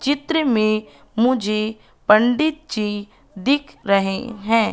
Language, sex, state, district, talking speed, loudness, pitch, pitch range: Hindi, female, Madhya Pradesh, Katni, 100 wpm, -20 LUFS, 225 Hz, 210-270 Hz